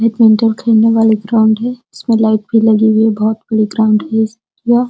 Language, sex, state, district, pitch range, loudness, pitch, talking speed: Hindi, female, Uttar Pradesh, Deoria, 220-230 Hz, -12 LUFS, 220 Hz, 185 wpm